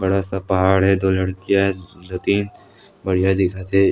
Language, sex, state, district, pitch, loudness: Chhattisgarhi, male, Chhattisgarh, Sarguja, 95 Hz, -19 LUFS